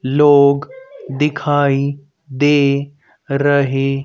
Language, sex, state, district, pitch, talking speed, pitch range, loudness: Hindi, male, Haryana, Rohtak, 140 Hz, 60 wpm, 140-145 Hz, -15 LUFS